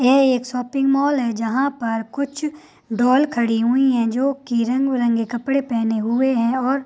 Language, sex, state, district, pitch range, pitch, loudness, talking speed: Hindi, female, Bihar, Purnia, 235-275 Hz, 255 Hz, -20 LUFS, 185 wpm